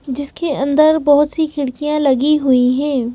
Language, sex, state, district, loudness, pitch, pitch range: Hindi, female, Madhya Pradesh, Bhopal, -15 LUFS, 290 Hz, 275-300 Hz